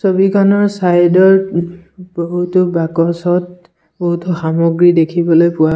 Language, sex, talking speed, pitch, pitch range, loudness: Assamese, male, 95 wpm, 175 Hz, 170-180 Hz, -13 LUFS